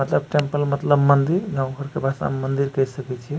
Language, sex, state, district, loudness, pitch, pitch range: Maithili, male, Bihar, Supaul, -21 LUFS, 140 Hz, 135-145 Hz